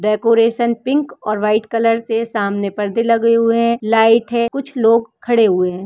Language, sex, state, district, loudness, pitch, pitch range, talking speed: Hindi, female, Uttar Pradesh, Varanasi, -16 LUFS, 230 Hz, 215-235 Hz, 185 wpm